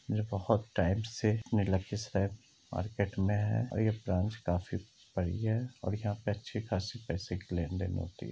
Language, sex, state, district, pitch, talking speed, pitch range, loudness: Hindi, male, Bihar, Lakhisarai, 105 Hz, 175 wpm, 95-110 Hz, -34 LUFS